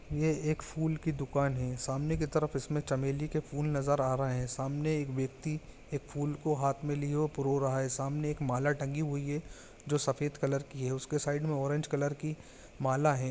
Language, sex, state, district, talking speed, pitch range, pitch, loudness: Hindi, male, Chhattisgarh, Bilaspur, 220 wpm, 135-150 Hz, 145 Hz, -33 LUFS